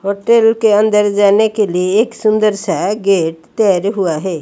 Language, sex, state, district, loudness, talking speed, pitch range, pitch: Hindi, female, Odisha, Malkangiri, -13 LUFS, 175 wpm, 190-215 Hz, 205 Hz